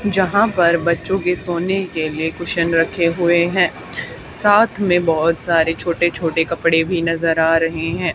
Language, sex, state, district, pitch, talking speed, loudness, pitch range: Hindi, female, Haryana, Charkhi Dadri, 170 Hz, 170 wpm, -17 LUFS, 165-180 Hz